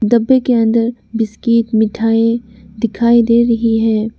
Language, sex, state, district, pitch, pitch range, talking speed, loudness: Hindi, female, Arunachal Pradesh, Lower Dibang Valley, 230 Hz, 225-235 Hz, 130 wpm, -14 LUFS